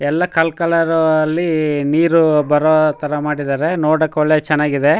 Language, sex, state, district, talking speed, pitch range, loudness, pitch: Kannada, male, Karnataka, Chamarajanagar, 120 wpm, 150-165 Hz, -15 LUFS, 155 Hz